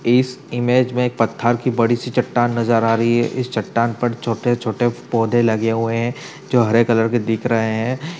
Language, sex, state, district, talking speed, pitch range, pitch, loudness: Hindi, male, Uttar Pradesh, Budaun, 205 wpm, 115-125 Hz, 120 Hz, -18 LUFS